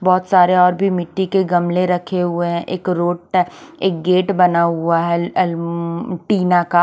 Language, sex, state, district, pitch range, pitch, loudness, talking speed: Hindi, female, Chandigarh, Chandigarh, 175-185 Hz, 180 Hz, -17 LUFS, 200 wpm